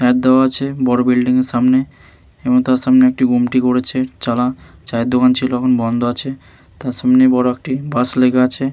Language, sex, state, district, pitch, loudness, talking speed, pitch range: Bengali, male, West Bengal, Malda, 125 Hz, -15 LUFS, 185 wpm, 125-130 Hz